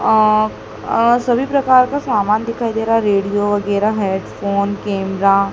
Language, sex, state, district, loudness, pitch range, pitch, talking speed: Hindi, female, Madhya Pradesh, Dhar, -16 LUFS, 200-230 Hz, 210 Hz, 165 wpm